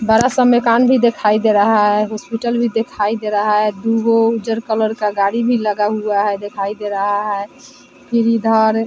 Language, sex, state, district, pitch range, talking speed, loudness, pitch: Hindi, female, Bihar, Vaishali, 210-230 Hz, 210 wpm, -16 LUFS, 220 Hz